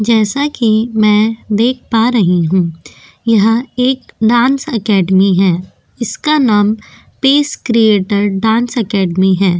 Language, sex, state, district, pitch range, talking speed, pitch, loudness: Hindi, female, Goa, North and South Goa, 190-240 Hz, 120 wpm, 220 Hz, -13 LUFS